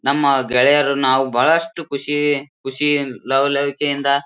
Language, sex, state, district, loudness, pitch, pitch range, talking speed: Kannada, male, Karnataka, Bijapur, -17 LUFS, 140 Hz, 135-145 Hz, 110 wpm